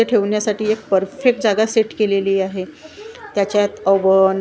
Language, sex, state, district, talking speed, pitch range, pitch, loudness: Marathi, female, Maharashtra, Gondia, 150 wpm, 195-230 Hz, 210 Hz, -17 LUFS